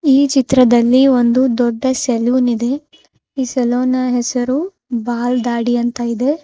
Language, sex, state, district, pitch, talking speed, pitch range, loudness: Kannada, female, Karnataka, Raichur, 250 Hz, 130 wpm, 240-265 Hz, -15 LUFS